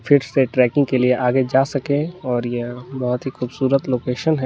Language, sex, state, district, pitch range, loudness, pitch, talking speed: Hindi, male, Jharkhand, Garhwa, 125-140 Hz, -19 LUFS, 130 Hz, 200 wpm